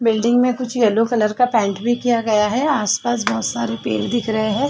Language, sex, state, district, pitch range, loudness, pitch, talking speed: Hindi, female, Chhattisgarh, Bastar, 210-240 Hz, -18 LUFS, 225 Hz, 230 wpm